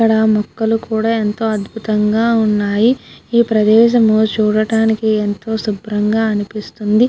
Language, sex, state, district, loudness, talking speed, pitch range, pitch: Telugu, female, Andhra Pradesh, Guntur, -15 LUFS, 100 wpm, 210-225 Hz, 220 Hz